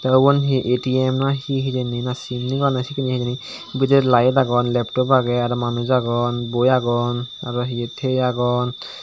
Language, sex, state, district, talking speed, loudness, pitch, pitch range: Chakma, male, Tripura, Dhalai, 180 wpm, -20 LUFS, 125 Hz, 120-130 Hz